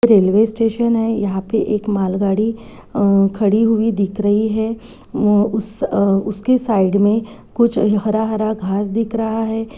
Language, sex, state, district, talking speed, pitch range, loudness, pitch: Hindi, female, Bihar, Sitamarhi, 145 wpm, 205-225 Hz, -17 LUFS, 215 Hz